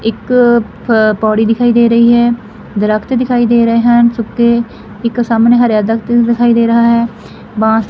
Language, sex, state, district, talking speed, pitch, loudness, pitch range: Punjabi, female, Punjab, Fazilka, 160 wpm, 235 Hz, -11 LUFS, 220-235 Hz